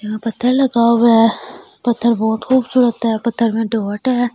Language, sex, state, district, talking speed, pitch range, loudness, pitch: Hindi, female, Delhi, New Delhi, 195 wpm, 225-245 Hz, -15 LUFS, 235 Hz